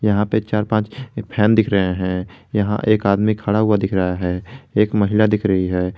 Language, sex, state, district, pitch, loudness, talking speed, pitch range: Hindi, male, Jharkhand, Garhwa, 105 Hz, -18 LUFS, 210 wpm, 95-110 Hz